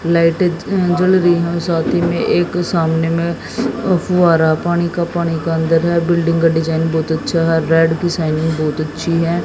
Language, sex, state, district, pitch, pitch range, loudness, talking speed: Hindi, female, Haryana, Jhajjar, 165 Hz, 160-175 Hz, -15 LUFS, 190 wpm